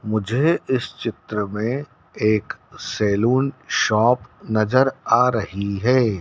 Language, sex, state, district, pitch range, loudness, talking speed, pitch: Hindi, male, Madhya Pradesh, Dhar, 105-130 Hz, -21 LUFS, 105 wpm, 115 Hz